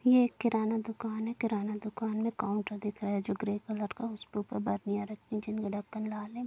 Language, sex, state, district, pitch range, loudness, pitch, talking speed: Hindi, female, Bihar, Gopalganj, 210-225 Hz, -34 LUFS, 215 Hz, 220 wpm